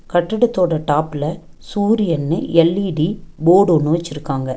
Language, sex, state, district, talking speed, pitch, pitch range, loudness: Tamil, female, Tamil Nadu, Nilgiris, 90 wpm, 165 Hz, 155-185 Hz, -17 LUFS